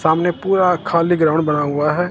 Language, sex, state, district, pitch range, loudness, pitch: Hindi, male, Punjab, Kapurthala, 155-175 Hz, -17 LUFS, 170 Hz